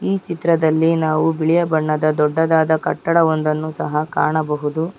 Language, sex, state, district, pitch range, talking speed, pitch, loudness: Kannada, female, Karnataka, Bangalore, 155-165 Hz, 120 wpm, 160 Hz, -18 LUFS